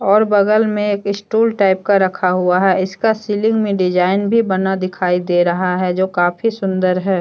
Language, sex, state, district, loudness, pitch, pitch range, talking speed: Hindi, female, Jharkhand, Deoghar, -16 LUFS, 190 Hz, 185-210 Hz, 200 wpm